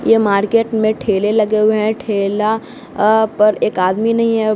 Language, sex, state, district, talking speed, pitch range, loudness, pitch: Hindi, male, Bihar, West Champaran, 185 wpm, 210-220 Hz, -15 LUFS, 215 Hz